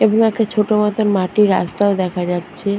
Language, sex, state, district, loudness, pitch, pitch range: Bengali, female, West Bengal, Purulia, -17 LUFS, 205 Hz, 185-215 Hz